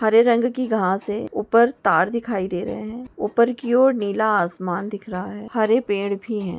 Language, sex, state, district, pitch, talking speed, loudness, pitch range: Hindi, female, Goa, North and South Goa, 215 Hz, 210 wpm, -21 LUFS, 200-235 Hz